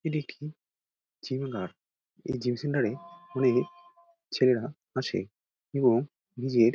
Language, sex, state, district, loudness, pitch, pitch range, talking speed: Bengali, male, West Bengal, Dakshin Dinajpur, -30 LUFS, 130 Hz, 115-150 Hz, 115 wpm